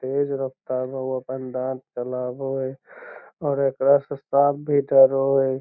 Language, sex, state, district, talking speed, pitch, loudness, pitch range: Magahi, male, Bihar, Lakhisarai, 160 wpm, 135 Hz, -23 LUFS, 130-140 Hz